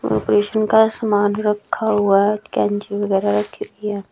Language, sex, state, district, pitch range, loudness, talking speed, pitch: Hindi, female, Chhattisgarh, Raipur, 195-210 Hz, -18 LUFS, 145 wpm, 205 Hz